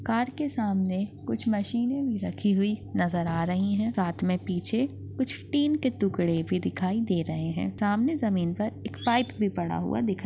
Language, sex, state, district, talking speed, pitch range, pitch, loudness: Hindi, female, Maharashtra, Chandrapur, 195 wpm, 180-235 Hz, 200 Hz, -28 LUFS